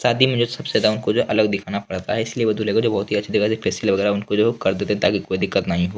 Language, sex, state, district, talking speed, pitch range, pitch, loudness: Hindi, male, Bihar, Lakhisarai, 330 wpm, 100-120 Hz, 110 Hz, -20 LUFS